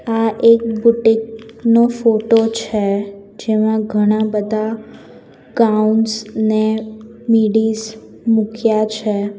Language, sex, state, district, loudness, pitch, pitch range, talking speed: Gujarati, female, Gujarat, Valsad, -16 LUFS, 220 Hz, 215-225 Hz, 90 wpm